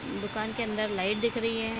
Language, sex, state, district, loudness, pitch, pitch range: Hindi, female, Bihar, Vaishali, -30 LUFS, 220 Hz, 215-230 Hz